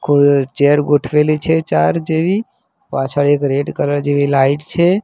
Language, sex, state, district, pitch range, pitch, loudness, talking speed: Gujarati, male, Gujarat, Gandhinagar, 140-160 Hz, 145 Hz, -15 LUFS, 155 wpm